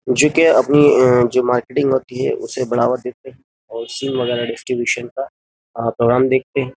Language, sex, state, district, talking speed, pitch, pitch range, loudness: Hindi, male, Uttar Pradesh, Jyotiba Phule Nagar, 140 wpm, 125 Hz, 120-130 Hz, -16 LUFS